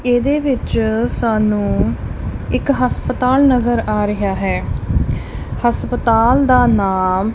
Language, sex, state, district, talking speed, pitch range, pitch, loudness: Punjabi, female, Punjab, Kapurthala, 100 wpm, 195-250 Hz, 225 Hz, -16 LUFS